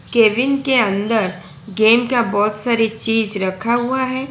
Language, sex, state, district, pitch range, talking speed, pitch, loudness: Hindi, female, Gujarat, Valsad, 210-245 Hz, 155 wpm, 225 Hz, -17 LUFS